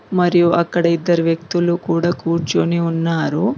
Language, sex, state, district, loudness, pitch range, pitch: Telugu, female, Telangana, Mahabubabad, -17 LUFS, 165-175 Hz, 170 Hz